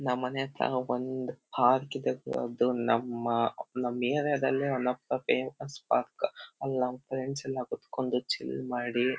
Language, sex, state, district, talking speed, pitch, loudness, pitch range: Kannada, male, Karnataka, Shimoga, 145 wpm, 125 Hz, -31 LUFS, 125-135 Hz